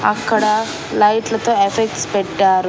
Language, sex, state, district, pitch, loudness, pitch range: Telugu, female, Andhra Pradesh, Annamaya, 215 Hz, -16 LUFS, 200-225 Hz